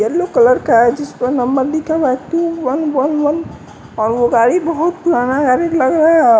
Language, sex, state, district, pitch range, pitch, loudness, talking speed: Hindi, male, Bihar, West Champaran, 250-330 Hz, 290 Hz, -14 LUFS, 180 wpm